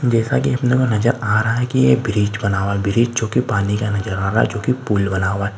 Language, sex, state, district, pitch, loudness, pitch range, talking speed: Marwari, male, Rajasthan, Nagaur, 110 Hz, -18 LUFS, 100-120 Hz, 310 wpm